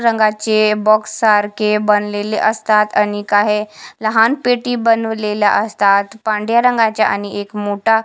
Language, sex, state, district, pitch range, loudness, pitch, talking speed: Marathi, female, Maharashtra, Washim, 205-225 Hz, -15 LUFS, 215 Hz, 120 wpm